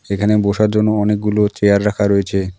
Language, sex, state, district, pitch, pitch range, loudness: Bengali, male, West Bengal, Alipurduar, 105 Hz, 100-105 Hz, -15 LUFS